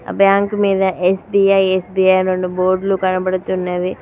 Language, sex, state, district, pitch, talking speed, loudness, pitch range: Telugu, female, Telangana, Mahabubabad, 185 Hz, 120 wpm, -16 LUFS, 185-195 Hz